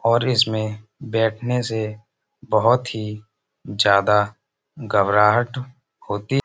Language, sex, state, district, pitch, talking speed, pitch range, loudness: Hindi, male, Uttar Pradesh, Budaun, 110 Hz, 85 wpm, 105-125 Hz, -20 LUFS